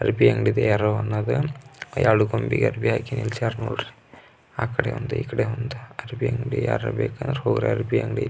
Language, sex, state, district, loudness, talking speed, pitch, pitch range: Kannada, male, Karnataka, Belgaum, -24 LUFS, 150 wpm, 120 Hz, 110-130 Hz